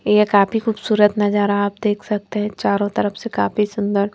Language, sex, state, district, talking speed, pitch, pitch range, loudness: Hindi, female, Madhya Pradesh, Bhopal, 190 wpm, 210 Hz, 205-210 Hz, -19 LUFS